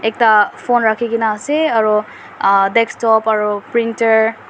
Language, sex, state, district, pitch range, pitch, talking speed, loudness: Nagamese, female, Nagaland, Dimapur, 215-230 Hz, 220 Hz, 135 wpm, -15 LUFS